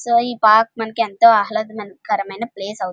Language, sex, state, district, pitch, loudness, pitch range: Telugu, female, Andhra Pradesh, Krishna, 220 Hz, -17 LUFS, 200-230 Hz